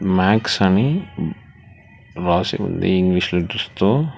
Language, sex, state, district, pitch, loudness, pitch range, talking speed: Telugu, male, Telangana, Hyderabad, 95 Hz, -19 LUFS, 90-110 Hz, 85 wpm